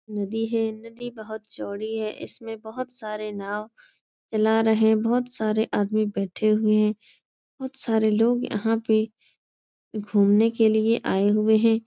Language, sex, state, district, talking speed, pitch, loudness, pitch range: Hindi, female, Uttar Pradesh, Etah, 150 wpm, 220 Hz, -24 LUFS, 215-225 Hz